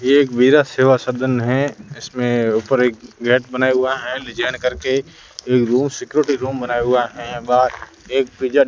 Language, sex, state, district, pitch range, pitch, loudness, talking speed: Hindi, male, Rajasthan, Bikaner, 125-135 Hz, 130 Hz, -18 LUFS, 165 wpm